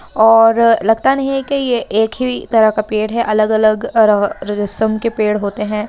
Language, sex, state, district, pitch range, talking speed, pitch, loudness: Hindi, female, Bihar, Bhagalpur, 215-230 Hz, 195 wpm, 220 Hz, -14 LUFS